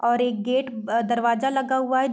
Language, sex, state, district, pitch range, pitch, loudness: Hindi, female, Uttar Pradesh, Deoria, 235-260 Hz, 245 Hz, -23 LUFS